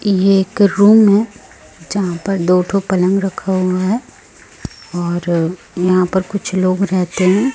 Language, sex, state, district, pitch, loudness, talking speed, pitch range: Hindi, female, Chhattisgarh, Raipur, 190 Hz, -15 LUFS, 150 wpm, 180-200 Hz